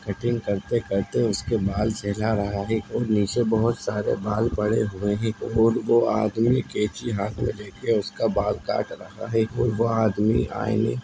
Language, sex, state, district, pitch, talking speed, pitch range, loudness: Hindi, male, Uttar Pradesh, Jalaun, 110 Hz, 180 wpm, 105-115 Hz, -24 LUFS